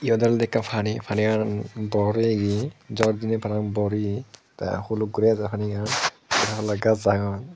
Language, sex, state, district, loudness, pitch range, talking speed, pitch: Chakma, male, Tripura, Dhalai, -24 LUFS, 105-115 Hz, 175 wpm, 110 Hz